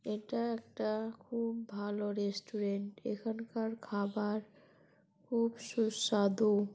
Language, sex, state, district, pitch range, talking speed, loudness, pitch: Bengali, female, West Bengal, Malda, 205-230 Hz, 90 wpm, -36 LUFS, 215 Hz